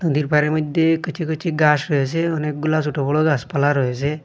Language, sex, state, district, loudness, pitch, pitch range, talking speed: Bengali, male, Assam, Hailakandi, -19 LUFS, 150 Hz, 145-160 Hz, 170 wpm